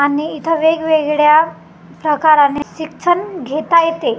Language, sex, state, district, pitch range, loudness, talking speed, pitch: Marathi, female, Maharashtra, Gondia, 300-330 Hz, -14 LUFS, 115 wpm, 315 Hz